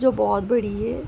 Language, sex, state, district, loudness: Hindi, female, Uttar Pradesh, Varanasi, -22 LUFS